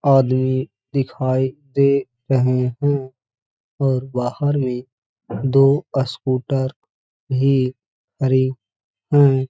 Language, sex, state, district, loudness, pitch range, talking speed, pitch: Hindi, male, Uttar Pradesh, Hamirpur, -19 LUFS, 125-135 Hz, 90 wpm, 130 Hz